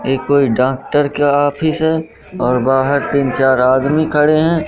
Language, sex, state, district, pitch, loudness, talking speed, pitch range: Hindi, male, Madhya Pradesh, Katni, 145 Hz, -14 LUFS, 165 wpm, 135-155 Hz